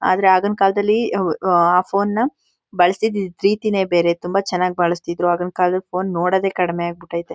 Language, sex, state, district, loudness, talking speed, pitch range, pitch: Kannada, female, Karnataka, Mysore, -18 LUFS, 170 wpm, 175-195 Hz, 185 Hz